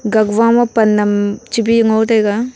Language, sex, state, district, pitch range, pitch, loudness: Wancho, female, Arunachal Pradesh, Longding, 210-230 Hz, 220 Hz, -13 LUFS